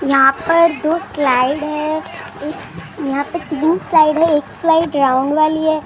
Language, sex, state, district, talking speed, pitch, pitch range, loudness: Hindi, female, Maharashtra, Gondia, 155 wpm, 305 Hz, 285-325 Hz, -15 LUFS